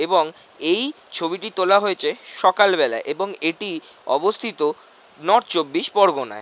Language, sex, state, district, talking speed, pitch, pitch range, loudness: Bengali, male, West Bengal, North 24 Parganas, 120 wpm, 200 Hz, 185-260 Hz, -20 LUFS